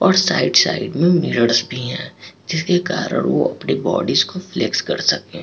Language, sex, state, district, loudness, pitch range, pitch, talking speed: Hindi, male, Bihar, Patna, -18 LUFS, 150-185 Hz, 180 Hz, 210 wpm